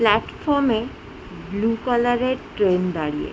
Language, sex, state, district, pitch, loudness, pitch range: Bengali, female, West Bengal, Jhargram, 225 Hz, -22 LUFS, 200-245 Hz